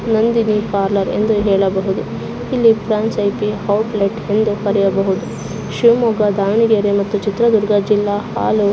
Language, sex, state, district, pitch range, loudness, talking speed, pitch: Kannada, female, Karnataka, Shimoga, 200-220 Hz, -16 LUFS, 105 wpm, 210 Hz